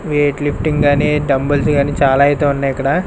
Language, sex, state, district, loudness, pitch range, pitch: Telugu, male, Andhra Pradesh, Sri Satya Sai, -15 LUFS, 140-150 Hz, 145 Hz